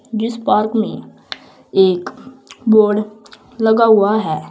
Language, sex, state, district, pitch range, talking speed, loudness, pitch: Hindi, female, Uttar Pradesh, Saharanpur, 210-230 Hz, 105 wpm, -15 LUFS, 220 Hz